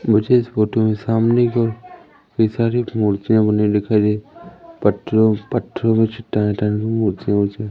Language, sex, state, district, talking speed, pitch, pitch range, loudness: Hindi, male, Madhya Pradesh, Umaria, 165 wpm, 110 Hz, 105-115 Hz, -18 LUFS